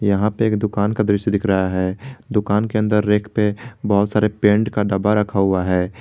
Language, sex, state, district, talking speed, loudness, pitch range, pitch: Hindi, male, Jharkhand, Garhwa, 220 wpm, -19 LUFS, 100-105 Hz, 105 Hz